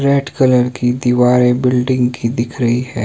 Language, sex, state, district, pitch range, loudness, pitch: Hindi, male, Himachal Pradesh, Shimla, 120-130 Hz, -14 LUFS, 125 Hz